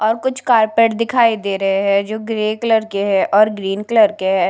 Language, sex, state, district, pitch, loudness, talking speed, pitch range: Hindi, female, Punjab, Kapurthala, 215 Hz, -16 LUFS, 225 wpm, 200-230 Hz